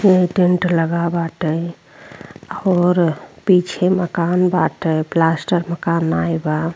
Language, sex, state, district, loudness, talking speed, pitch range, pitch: Bhojpuri, female, Uttar Pradesh, Ghazipur, -17 LUFS, 105 wpm, 165-180 Hz, 170 Hz